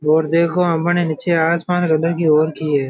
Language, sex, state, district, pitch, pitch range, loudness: Marwari, male, Rajasthan, Nagaur, 165 Hz, 155-170 Hz, -17 LUFS